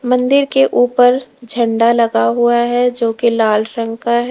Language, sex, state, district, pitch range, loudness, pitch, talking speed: Hindi, female, Uttar Pradesh, Lalitpur, 230-250 Hz, -14 LUFS, 240 Hz, 180 wpm